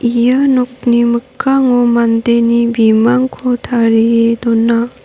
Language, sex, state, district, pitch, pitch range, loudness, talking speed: Garo, female, Meghalaya, North Garo Hills, 235 Hz, 230-250 Hz, -12 LUFS, 85 wpm